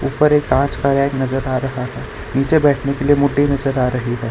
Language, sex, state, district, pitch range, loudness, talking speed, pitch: Hindi, male, Gujarat, Valsad, 130-140 Hz, -17 LUFS, 250 wpm, 135 Hz